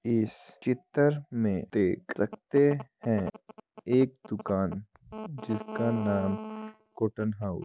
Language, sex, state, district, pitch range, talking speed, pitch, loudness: Hindi, male, Uttar Pradesh, Muzaffarnagar, 110-145 Hz, 100 wpm, 120 Hz, -30 LUFS